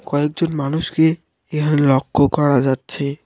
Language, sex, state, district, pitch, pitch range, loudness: Bengali, male, West Bengal, Alipurduar, 145 Hz, 140-155 Hz, -18 LUFS